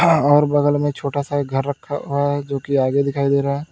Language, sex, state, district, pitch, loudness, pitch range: Hindi, male, Uttar Pradesh, Lalitpur, 145 Hz, -19 LUFS, 140-145 Hz